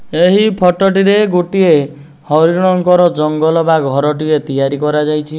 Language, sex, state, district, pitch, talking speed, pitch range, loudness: Odia, male, Odisha, Nuapada, 160 Hz, 135 wpm, 150-180 Hz, -12 LUFS